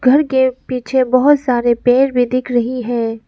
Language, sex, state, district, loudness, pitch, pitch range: Hindi, female, Arunachal Pradesh, Lower Dibang Valley, -15 LUFS, 255 Hz, 245-260 Hz